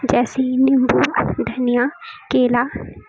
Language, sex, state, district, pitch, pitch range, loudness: Hindi, female, Uttar Pradesh, Lucknow, 260 Hz, 245-270 Hz, -18 LUFS